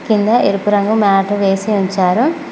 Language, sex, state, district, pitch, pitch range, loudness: Telugu, female, Telangana, Mahabubabad, 205 Hz, 195-220 Hz, -14 LUFS